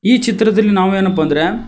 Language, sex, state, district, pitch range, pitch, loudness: Kannada, male, Karnataka, Koppal, 185-225 Hz, 205 Hz, -13 LUFS